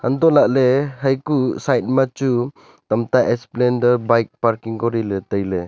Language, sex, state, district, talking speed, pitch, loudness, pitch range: Wancho, male, Arunachal Pradesh, Longding, 135 wpm, 125 Hz, -18 LUFS, 115-135 Hz